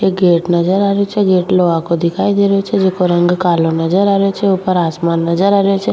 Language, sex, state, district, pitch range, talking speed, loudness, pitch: Rajasthani, female, Rajasthan, Churu, 170-195 Hz, 265 wpm, -13 LUFS, 185 Hz